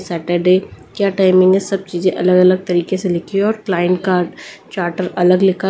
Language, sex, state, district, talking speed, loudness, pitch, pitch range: Hindi, female, Delhi, New Delhi, 190 wpm, -15 LUFS, 185 Hz, 180-190 Hz